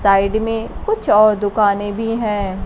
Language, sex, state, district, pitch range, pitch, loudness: Hindi, female, Bihar, Kaimur, 200-225 Hz, 210 Hz, -17 LUFS